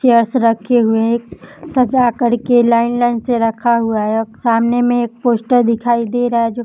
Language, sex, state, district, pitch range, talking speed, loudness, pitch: Hindi, female, Bihar, Samastipur, 230-245 Hz, 215 wpm, -15 LUFS, 235 Hz